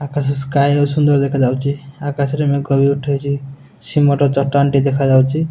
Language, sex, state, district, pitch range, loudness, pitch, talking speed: Odia, male, Odisha, Nuapada, 140-145 Hz, -16 LUFS, 140 Hz, 150 wpm